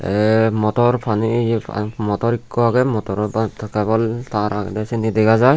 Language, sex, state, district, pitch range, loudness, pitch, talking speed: Chakma, male, Tripura, Unakoti, 105-115 Hz, -19 LUFS, 110 Hz, 160 wpm